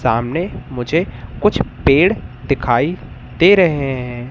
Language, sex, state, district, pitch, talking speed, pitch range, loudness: Hindi, male, Madhya Pradesh, Katni, 130 Hz, 110 wpm, 125-165 Hz, -16 LUFS